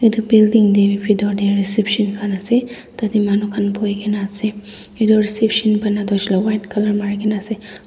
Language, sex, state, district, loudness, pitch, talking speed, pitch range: Nagamese, female, Nagaland, Dimapur, -17 LUFS, 210 Hz, 205 wpm, 200-215 Hz